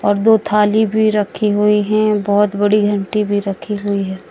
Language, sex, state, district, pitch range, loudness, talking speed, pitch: Hindi, female, Madhya Pradesh, Katni, 205-215 Hz, -15 LUFS, 195 wpm, 210 Hz